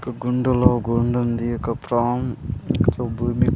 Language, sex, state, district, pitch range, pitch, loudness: Telugu, male, Andhra Pradesh, Sri Satya Sai, 120-125 Hz, 120 Hz, -21 LUFS